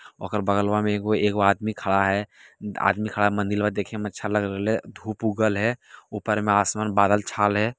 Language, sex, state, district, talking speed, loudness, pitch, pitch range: Hindi, male, Bihar, Jamui, 195 wpm, -24 LUFS, 105 Hz, 100-110 Hz